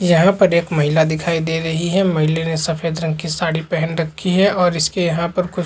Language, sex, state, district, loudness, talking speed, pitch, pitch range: Chhattisgarhi, male, Chhattisgarh, Jashpur, -17 LUFS, 235 wpm, 165 Hz, 160-180 Hz